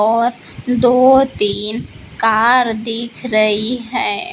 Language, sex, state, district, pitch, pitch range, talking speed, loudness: Hindi, female, Maharashtra, Gondia, 235 Hz, 220-250 Hz, 95 wpm, -14 LUFS